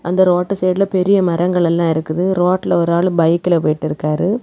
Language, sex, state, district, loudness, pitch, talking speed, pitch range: Tamil, female, Tamil Nadu, Kanyakumari, -15 LUFS, 175 Hz, 175 wpm, 165-185 Hz